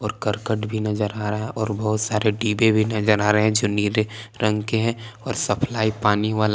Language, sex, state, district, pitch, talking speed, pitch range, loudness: Hindi, male, Jharkhand, Palamu, 110 Hz, 220 wpm, 105-110 Hz, -22 LUFS